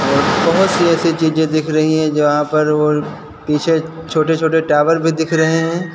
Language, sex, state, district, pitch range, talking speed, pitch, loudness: Hindi, male, Rajasthan, Barmer, 155-165 Hz, 190 wpm, 160 Hz, -15 LUFS